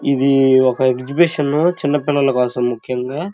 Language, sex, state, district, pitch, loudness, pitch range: Telugu, male, Andhra Pradesh, Krishna, 135 Hz, -16 LUFS, 130-145 Hz